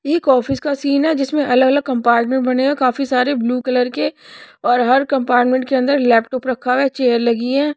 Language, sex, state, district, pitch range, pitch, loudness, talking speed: Hindi, female, Odisha, Nuapada, 250-275 Hz, 260 Hz, -16 LUFS, 215 wpm